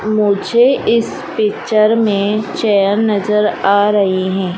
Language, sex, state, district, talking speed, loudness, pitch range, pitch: Hindi, female, Madhya Pradesh, Dhar, 120 wpm, -14 LUFS, 200-215 Hz, 210 Hz